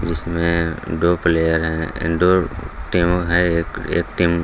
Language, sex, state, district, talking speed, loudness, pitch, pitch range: Hindi, male, Bihar, Gaya, 135 wpm, -19 LUFS, 85 Hz, 80-85 Hz